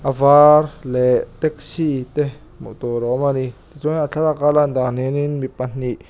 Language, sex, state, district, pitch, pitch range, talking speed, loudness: Mizo, male, Mizoram, Aizawl, 140 Hz, 125-150 Hz, 215 wpm, -18 LUFS